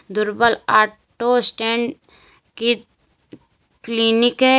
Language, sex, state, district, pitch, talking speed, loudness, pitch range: Hindi, female, Uttar Pradesh, Lalitpur, 235 Hz, 80 wpm, -17 LUFS, 225-240 Hz